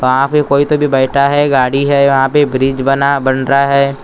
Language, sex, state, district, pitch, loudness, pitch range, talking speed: Hindi, male, Maharashtra, Gondia, 140 Hz, -12 LUFS, 135-140 Hz, 240 wpm